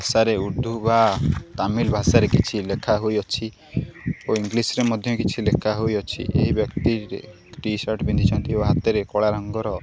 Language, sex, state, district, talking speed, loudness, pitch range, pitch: Odia, male, Odisha, Khordha, 145 wpm, -22 LUFS, 105-115 Hz, 110 Hz